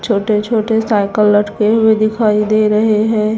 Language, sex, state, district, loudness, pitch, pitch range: Hindi, female, Haryana, Charkhi Dadri, -13 LUFS, 215 Hz, 210-220 Hz